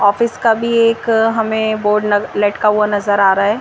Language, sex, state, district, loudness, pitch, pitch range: Hindi, female, Madhya Pradesh, Bhopal, -14 LUFS, 210 Hz, 205-225 Hz